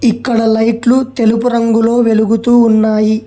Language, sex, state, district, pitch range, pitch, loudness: Telugu, male, Telangana, Hyderabad, 220-240 Hz, 230 Hz, -11 LUFS